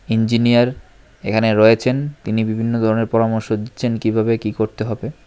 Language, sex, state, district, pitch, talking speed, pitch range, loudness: Bengali, male, Tripura, West Tripura, 110 Hz, 135 wpm, 110-115 Hz, -18 LUFS